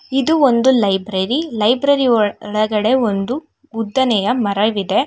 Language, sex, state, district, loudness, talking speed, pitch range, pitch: Kannada, female, Karnataka, Bangalore, -16 LUFS, 95 wpm, 210-260 Hz, 230 Hz